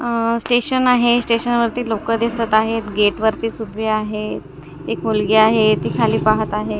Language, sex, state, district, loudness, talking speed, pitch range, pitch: Marathi, female, Maharashtra, Gondia, -17 LUFS, 160 wpm, 215-235 Hz, 225 Hz